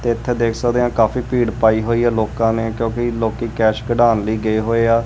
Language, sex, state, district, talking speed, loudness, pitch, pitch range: Punjabi, male, Punjab, Kapurthala, 235 wpm, -17 LUFS, 115 Hz, 110-120 Hz